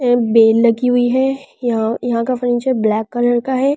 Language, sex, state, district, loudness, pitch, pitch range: Hindi, female, Delhi, New Delhi, -15 LUFS, 245 Hz, 230-255 Hz